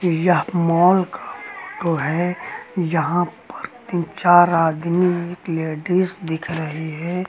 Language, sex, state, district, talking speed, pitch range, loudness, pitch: Hindi, male, Uttar Pradesh, Lucknow, 125 wpm, 165-180 Hz, -20 LUFS, 175 Hz